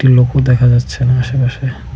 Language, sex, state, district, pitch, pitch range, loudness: Bengali, male, West Bengal, Cooch Behar, 125 Hz, 125-130 Hz, -13 LUFS